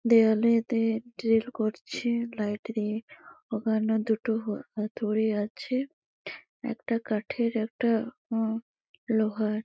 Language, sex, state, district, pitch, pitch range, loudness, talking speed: Bengali, female, West Bengal, Malda, 225 Hz, 220-235 Hz, -29 LUFS, 100 wpm